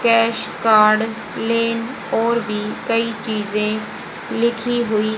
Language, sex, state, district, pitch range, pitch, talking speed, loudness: Hindi, female, Haryana, Rohtak, 215-230 Hz, 225 Hz, 105 wpm, -19 LUFS